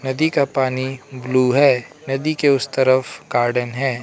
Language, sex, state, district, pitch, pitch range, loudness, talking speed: Hindi, male, Arunachal Pradesh, Lower Dibang Valley, 130 Hz, 130-140 Hz, -18 LUFS, 165 wpm